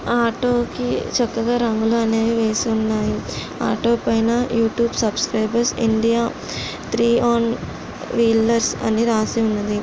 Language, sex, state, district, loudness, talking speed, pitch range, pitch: Telugu, female, Andhra Pradesh, Srikakulam, -19 LUFS, 120 wpm, 225-235 Hz, 230 Hz